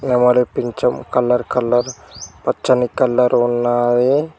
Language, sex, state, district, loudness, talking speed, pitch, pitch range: Telugu, male, Telangana, Mahabubabad, -17 LUFS, 95 wpm, 125 Hz, 120-125 Hz